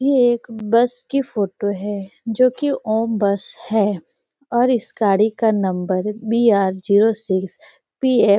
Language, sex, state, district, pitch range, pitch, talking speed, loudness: Hindi, female, Chhattisgarh, Sarguja, 200-240 Hz, 220 Hz, 155 wpm, -19 LUFS